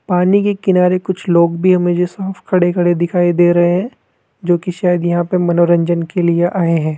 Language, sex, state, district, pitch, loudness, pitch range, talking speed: Hindi, male, Rajasthan, Jaipur, 175 Hz, -14 LUFS, 175-185 Hz, 195 wpm